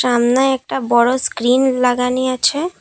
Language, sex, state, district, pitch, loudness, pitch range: Bengali, female, Assam, Kamrup Metropolitan, 255 Hz, -16 LUFS, 245-265 Hz